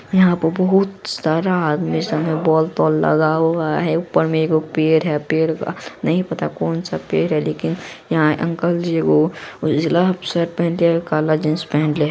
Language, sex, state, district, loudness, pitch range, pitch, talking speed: Hindi, female, Bihar, Araria, -18 LUFS, 155-170 Hz, 160 Hz, 175 wpm